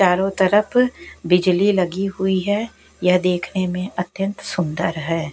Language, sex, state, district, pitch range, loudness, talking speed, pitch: Hindi, female, Bihar, West Champaran, 180-195 Hz, -20 LUFS, 135 wpm, 185 Hz